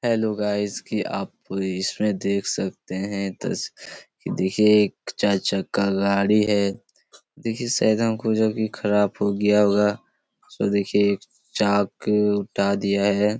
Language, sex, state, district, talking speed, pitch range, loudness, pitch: Hindi, male, Chhattisgarh, Korba, 145 wpm, 100-105 Hz, -23 LUFS, 105 Hz